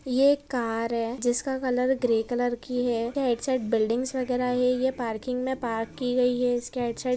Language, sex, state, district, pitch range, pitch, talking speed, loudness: Hindi, female, Maharashtra, Pune, 235-255 Hz, 250 Hz, 200 wpm, -26 LUFS